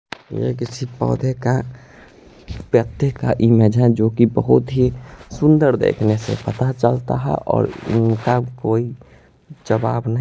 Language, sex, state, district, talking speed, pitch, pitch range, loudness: Hindi, male, Bihar, Muzaffarpur, 155 wpm, 120 Hz, 115-130 Hz, -18 LUFS